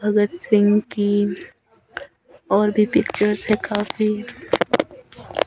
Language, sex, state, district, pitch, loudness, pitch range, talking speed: Hindi, female, Himachal Pradesh, Shimla, 210 Hz, -20 LUFS, 205-215 Hz, 90 wpm